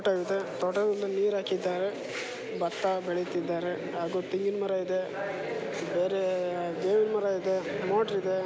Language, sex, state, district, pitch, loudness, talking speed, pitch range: Kannada, male, Karnataka, Chamarajanagar, 190 Hz, -30 LUFS, 100 wpm, 180-200 Hz